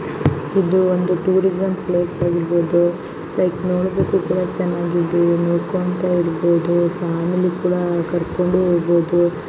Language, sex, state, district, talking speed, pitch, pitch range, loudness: Kannada, female, Karnataka, Mysore, 90 wpm, 175 Hz, 170-180 Hz, -18 LUFS